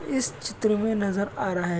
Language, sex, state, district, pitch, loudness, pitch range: Hindi, male, Uttar Pradesh, Jalaun, 205 Hz, -26 LUFS, 190-220 Hz